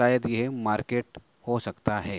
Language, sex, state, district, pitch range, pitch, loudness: Hindi, male, Uttar Pradesh, Hamirpur, 105-120 Hz, 120 Hz, -28 LUFS